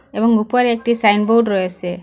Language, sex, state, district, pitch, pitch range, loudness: Bengali, female, Assam, Hailakandi, 220 Hz, 195-235 Hz, -16 LUFS